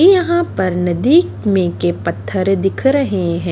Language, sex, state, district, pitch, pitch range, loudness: Hindi, female, Haryana, Charkhi Dadri, 195 Hz, 180-285 Hz, -15 LUFS